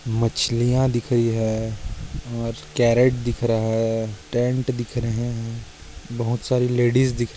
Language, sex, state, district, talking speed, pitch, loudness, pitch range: Hindi, male, Maharashtra, Sindhudurg, 145 wpm, 120 Hz, -22 LUFS, 115-120 Hz